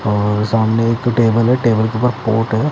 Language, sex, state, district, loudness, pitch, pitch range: Hindi, male, Haryana, Jhajjar, -15 LUFS, 115 Hz, 110-120 Hz